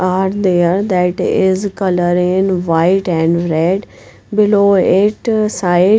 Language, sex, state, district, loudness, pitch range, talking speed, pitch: English, female, Punjab, Pathankot, -14 LUFS, 175-200 Hz, 120 wpm, 185 Hz